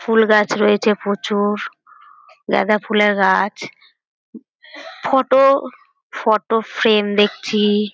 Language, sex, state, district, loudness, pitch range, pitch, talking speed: Bengali, female, West Bengal, North 24 Parganas, -16 LUFS, 210-265 Hz, 215 Hz, 85 wpm